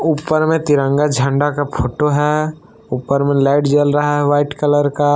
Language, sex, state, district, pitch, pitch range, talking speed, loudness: Hindi, male, Jharkhand, Palamu, 145 Hz, 140-150 Hz, 185 wpm, -16 LUFS